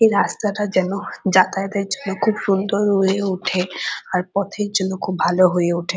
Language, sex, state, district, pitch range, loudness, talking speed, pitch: Bengali, female, West Bengal, Purulia, 185-200 Hz, -20 LUFS, 190 wpm, 195 Hz